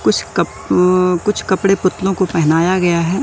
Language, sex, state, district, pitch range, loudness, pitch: Hindi, male, Madhya Pradesh, Katni, 175-190 Hz, -15 LUFS, 185 Hz